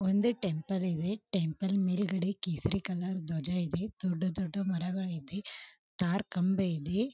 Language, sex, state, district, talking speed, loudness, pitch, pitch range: Kannada, female, Karnataka, Belgaum, 135 wpm, -33 LUFS, 185 Hz, 175-195 Hz